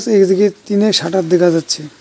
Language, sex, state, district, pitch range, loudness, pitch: Bengali, male, West Bengal, Cooch Behar, 175-205 Hz, -14 LUFS, 190 Hz